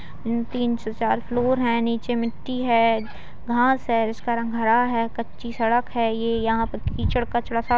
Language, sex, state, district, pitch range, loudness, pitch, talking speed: Hindi, female, Bihar, Jamui, 230-240 Hz, -23 LUFS, 235 Hz, 185 wpm